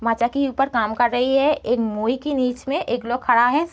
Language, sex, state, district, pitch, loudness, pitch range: Hindi, female, Bihar, East Champaran, 245 Hz, -20 LUFS, 235-270 Hz